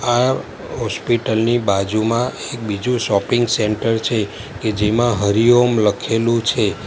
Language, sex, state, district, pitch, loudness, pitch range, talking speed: Gujarati, male, Gujarat, Valsad, 115 Hz, -18 LUFS, 105-120 Hz, 115 wpm